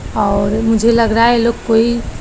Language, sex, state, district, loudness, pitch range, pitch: Hindi, female, Maharashtra, Chandrapur, -13 LUFS, 220-235 Hz, 225 Hz